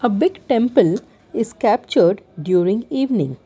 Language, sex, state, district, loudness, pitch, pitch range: English, female, Karnataka, Bangalore, -18 LUFS, 225 Hz, 185-245 Hz